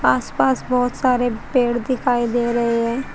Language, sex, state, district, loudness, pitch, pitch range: Hindi, female, Uttar Pradesh, Shamli, -19 LUFS, 240 Hz, 230-250 Hz